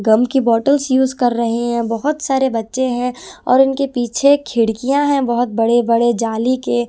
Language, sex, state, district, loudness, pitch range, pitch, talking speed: Hindi, female, Punjab, Kapurthala, -16 LUFS, 230-265 Hz, 245 Hz, 185 wpm